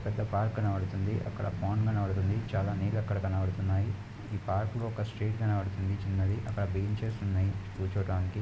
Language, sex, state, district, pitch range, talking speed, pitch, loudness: Telugu, male, Andhra Pradesh, Chittoor, 95-105 Hz, 150 wpm, 100 Hz, -32 LUFS